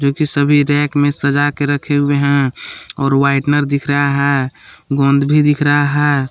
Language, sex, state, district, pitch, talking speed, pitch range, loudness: Hindi, male, Jharkhand, Palamu, 145 Hz, 170 wpm, 140-145 Hz, -14 LUFS